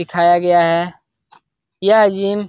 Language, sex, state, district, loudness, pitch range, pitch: Hindi, male, Bihar, Darbhanga, -14 LUFS, 175-200 Hz, 175 Hz